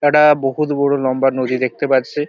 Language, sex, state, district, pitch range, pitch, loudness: Bengali, male, West Bengal, Paschim Medinipur, 130-145 Hz, 140 Hz, -16 LUFS